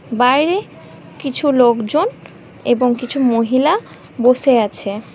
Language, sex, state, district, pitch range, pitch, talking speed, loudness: Bengali, female, West Bengal, North 24 Parganas, 235-270 Hz, 250 Hz, 95 wpm, -16 LUFS